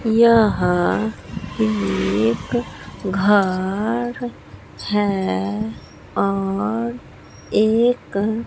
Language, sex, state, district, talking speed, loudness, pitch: Hindi, female, Bihar, Katihar, 45 wpm, -20 LUFS, 200 Hz